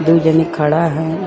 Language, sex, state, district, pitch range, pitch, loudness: Bhojpuri, female, Uttar Pradesh, Gorakhpur, 160-165 Hz, 160 Hz, -14 LUFS